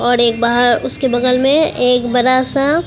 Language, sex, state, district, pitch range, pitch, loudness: Hindi, female, Bihar, Katihar, 245-265 Hz, 250 Hz, -13 LUFS